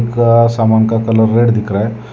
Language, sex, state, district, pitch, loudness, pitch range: Hindi, male, Telangana, Hyderabad, 115 Hz, -12 LUFS, 110-115 Hz